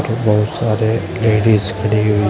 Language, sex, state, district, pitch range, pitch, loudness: Hindi, male, Uttar Pradesh, Shamli, 105-110 Hz, 110 Hz, -15 LUFS